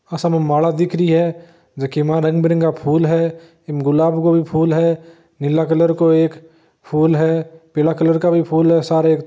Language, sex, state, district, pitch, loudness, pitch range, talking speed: Marwari, male, Rajasthan, Nagaur, 165 Hz, -16 LUFS, 160-165 Hz, 215 wpm